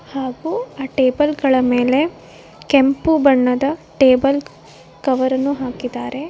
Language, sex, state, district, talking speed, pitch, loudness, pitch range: Kannada, female, Karnataka, Koppal, 105 wpm, 270 Hz, -17 LUFS, 260-285 Hz